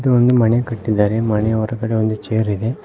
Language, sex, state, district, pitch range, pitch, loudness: Kannada, male, Karnataka, Koppal, 110-115 Hz, 110 Hz, -17 LUFS